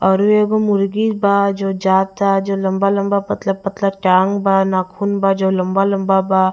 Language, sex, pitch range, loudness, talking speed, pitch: Bhojpuri, female, 190-200 Hz, -16 LUFS, 155 wpm, 195 Hz